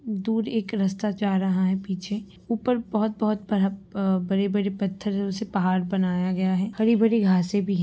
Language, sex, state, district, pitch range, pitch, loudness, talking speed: Hindi, female, Bihar, Lakhisarai, 190-215 Hz, 200 Hz, -25 LUFS, 170 wpm